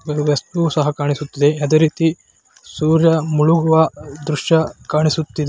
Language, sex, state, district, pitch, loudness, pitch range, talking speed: Kannada, male, Karnataka, Belgaum, 155 Hz, -17 LUFS, 150-160 Hz, 110 wpm